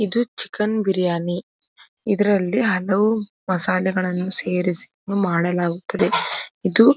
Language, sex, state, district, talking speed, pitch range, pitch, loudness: Kannada, female, Karnataka, Dharwad, 85 wpm, 180-205 Hz, 190 Hz, -19 LUFS